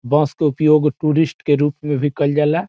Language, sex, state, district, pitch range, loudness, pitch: Bhojpuri, male, Bihar, Saran, 145-155 Hz, -17 LUFS, 150 Hz